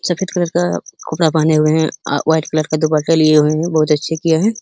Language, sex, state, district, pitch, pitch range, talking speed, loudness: Hindi, male, Uttar Pradesh, Hamirpur, 160 Hz, 155-165 Hz, 245 wpm, -15 LUFS